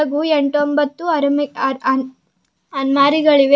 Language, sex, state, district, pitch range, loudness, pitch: Kannada, female, Karnataka, Bidar, 270-295 Hz, -17 LUFS, 285 Hz